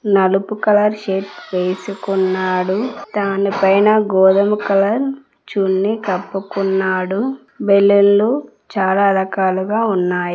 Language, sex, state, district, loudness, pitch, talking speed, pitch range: Telugu, female, Telangana, Mahabubabad, -16 LUFS, 195 Hz, 75 wpm, 190-210 Hz